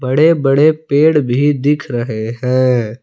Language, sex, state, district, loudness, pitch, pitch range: Hindi, male, Jharkhand, Palamu, -14 LUFS, 135 Hz, 125-150 Hz